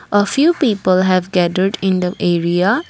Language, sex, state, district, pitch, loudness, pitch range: English, female, Assam, Kamrup Metropolitan, 190 Hz, -15 LUFS, 180-205 Hz